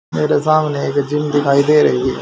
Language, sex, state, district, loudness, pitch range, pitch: Hindi, male, Haryana, Rohtak, -15 LUFS, 145-150 Hz, 150 Hz